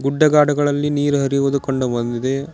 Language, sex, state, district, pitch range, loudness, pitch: Kannada, male, Karnataka, Koppal, 135-145 Hz, -18 LUFS, 140 Hz